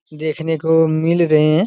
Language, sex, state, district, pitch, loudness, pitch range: Hindi, male, Chhattisgarh, Raigarh, 160 Hz, -16 LUFS, 155-160 Hz